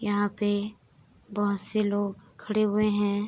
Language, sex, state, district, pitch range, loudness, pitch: Hindi, female, Bihar, Darbhanga, 205-210 Hz, -28 LUFS, 205 Hz